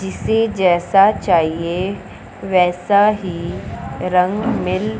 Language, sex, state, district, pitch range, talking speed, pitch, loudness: Hindi, male, Punjab, Fazilka, 175-200 Hz, 85 wpm, 185 Hz, -17 LUFS